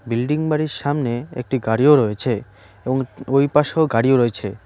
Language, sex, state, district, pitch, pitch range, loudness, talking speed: Bengali, male, West Bengal, Cooch Behar, 130 Hz, 115-145 Hz, -19 LUFS, 140 wpm